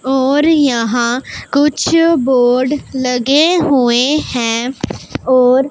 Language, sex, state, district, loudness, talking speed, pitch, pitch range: Hindi, female, Punjab, Pathankot, -13 LUFS, 85 wpm, 265 Hz, 250-290 Hz